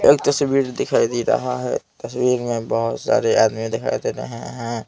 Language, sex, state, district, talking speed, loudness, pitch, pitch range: Hindi, male, Bihar, Patna, 195 wpm, -20 LUFS, 120 Hz, 115-125 Hz